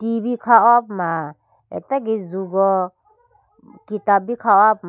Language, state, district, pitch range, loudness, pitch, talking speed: Idu Mishmi, Arunachal Pradesh, Lower Dibang Valley, 190-240 Hz, -18 LUFS, 215 Hz, 145 wpm